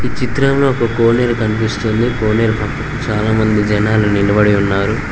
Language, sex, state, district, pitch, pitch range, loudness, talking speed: Telugu, male, Telangana, Mahabubabad, 110 Hz, 105-120 Hz, -14 LUFS, 115 wpm